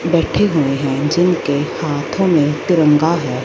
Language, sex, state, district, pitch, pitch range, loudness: Hindi, female, Punjab, Fazilka, 155 Hz, 145-170 Hz, -15 LUFS